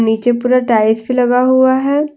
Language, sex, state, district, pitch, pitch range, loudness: Hindi, female, Jharkhand, Deoghar, 250 Hz, 230-260 Hz, -13 LUFS